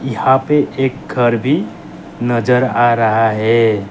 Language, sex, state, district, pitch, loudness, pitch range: Hindi, male, Arunachal Pradesh, Lower Dibang Valley, 120 Hz, -14 LUFS, 115-130 Hz